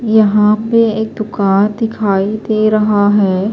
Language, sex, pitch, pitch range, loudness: Urdu, female, 215 Hz, 205-220 Hz, -13 LUFS